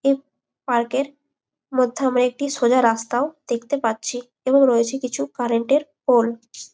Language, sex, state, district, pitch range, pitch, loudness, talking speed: Bengali, female, West Bengal, Jalpaiguri, 240-275 Hz, 255 Hz, -21 LUFS, 60 wpm